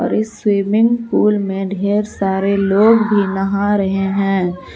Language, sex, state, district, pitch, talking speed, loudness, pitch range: Hindi, female, Jharkhand, Palamu, 200 Hz, 150 wpm, -16 LUFS, 195-210 Hz